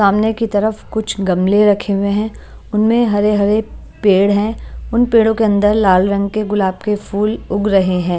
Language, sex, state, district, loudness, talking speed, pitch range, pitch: Hindi, female, Maharashtra, Washim, -15 LUFS, 190 wpm, 200-215 Hz, 205 Hz